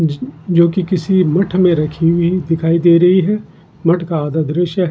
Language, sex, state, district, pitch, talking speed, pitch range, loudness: Hindi, male, Uttarakhand, Tehri Garhwal, 170 Hz, 195 wpm, 160-185 Hz, -14 LUFS